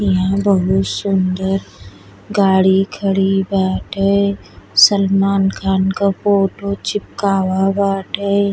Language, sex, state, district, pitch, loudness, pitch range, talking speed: Bhojpuri, female, Uttar Pradesh, Deoria, 195 Hz, -16 LUFS, 190-200 Hz, 85 wpm